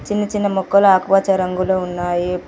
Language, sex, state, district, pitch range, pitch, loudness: Telugu, female, Telangana, Mahabubabad, 180-200 Hz, 190 Hz, -17 LUFS